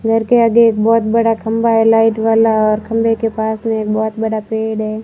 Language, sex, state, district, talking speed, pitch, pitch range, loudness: Hindi, female, Rajasthan, Barmer, 240 wpm, 225 Hz, 220-225 Hz, -14 LUFS